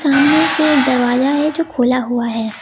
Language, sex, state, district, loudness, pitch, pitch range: Hindi, female, Uttar Pradesh, Lucknow, -14 LUFS, 270 Hz, 245-300 Hz